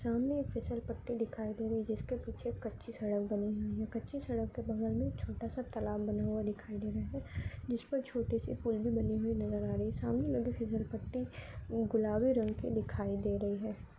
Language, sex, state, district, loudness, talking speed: Marwari, female, Rajasthan, Nagaur, -37 LUFS, 220 wpm